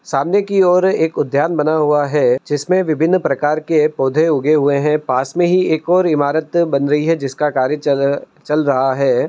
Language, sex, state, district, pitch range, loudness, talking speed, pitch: Hindi, male, Uttar Pradesh, Budaun, 140-165 Hz, -15 LUFS, 200 wpm, 150 Hz